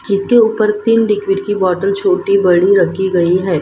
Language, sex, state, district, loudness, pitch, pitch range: Hindi, female, Maharashtra, Gondia, -13 LUFS, 200 Hz, 185-220 Hz